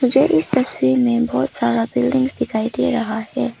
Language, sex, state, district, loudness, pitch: Hindi, female, Arunachal Pradesh, Papum Pare, -18 LUFS, 220 Hz